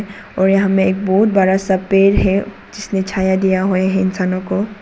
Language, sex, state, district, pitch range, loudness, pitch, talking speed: Hindi, female, Arunachal Pradesh, Papum Pare, 190-195 Hz, -15 LUFS, 190 Hz, 175 wpm